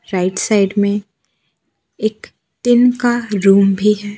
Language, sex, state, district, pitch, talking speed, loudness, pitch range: Hindi, female, Gujarat, Valsad, 205 Hz, 130 wpm, -15 LUFS, 195-220 Hz